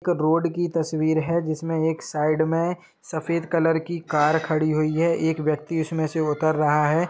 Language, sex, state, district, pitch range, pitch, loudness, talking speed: Hindi, male, Jharkhand, Sahebganj, 155-165 Hz, 160 Hz, -23 LUFS, 195 wpm